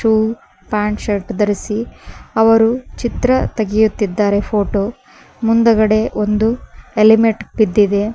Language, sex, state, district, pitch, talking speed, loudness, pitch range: Kannada, female, Karnataka, Koppal, 215 Hz, 90 wpm, -15 LUFS, 210-225 Hz